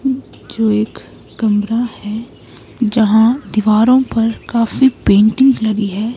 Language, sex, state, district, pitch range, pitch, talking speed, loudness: Hindi, female, Himachal Pradesh, Shimla, 215-240 Hz, 225 Hz, 105 wpm, -14 LUFS